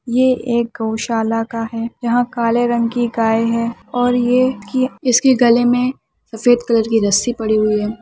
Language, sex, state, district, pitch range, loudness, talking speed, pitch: Hindi, male, Bihar, Bhagalpur, 225-245 Hz, -16 LUFS, 180 wpm, 235 Hz